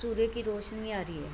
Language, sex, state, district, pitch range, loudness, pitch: Hindi, female, Bihar, Gopalganj, 205-225 Hz, -34 LUFS, 220 Hz